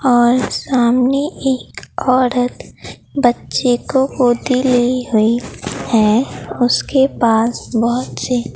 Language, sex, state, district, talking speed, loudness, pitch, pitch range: Hindi, female, Bihar, Katihar, 100 wpm, -16 LUFS, 250 Hz, 240-255 Hz